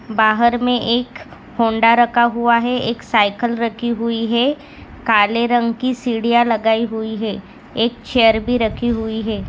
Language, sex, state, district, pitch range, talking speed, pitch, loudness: Hindi, female, Maharashtra, Dhule, 225-240 Hz, 160 wpm, 235 Hz, -17 LUFS